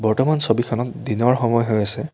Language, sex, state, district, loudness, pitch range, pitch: Assamese, male, Assam, Kamrup Metropolitan, -18 LUFS, 115-130 Hz, 120 Hz